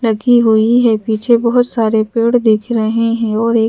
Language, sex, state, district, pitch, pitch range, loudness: Hindi, female, Madhya Pradesh, Bhopal, 230 Hz, 220-235 Hz, -13 LUFS